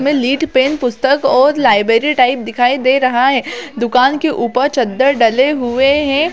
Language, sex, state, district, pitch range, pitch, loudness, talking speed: Hindi, female, Chhattisgarh, Bilaspur, 250-280 Hz, 265 Hz, -13 LUFS, 170 wpm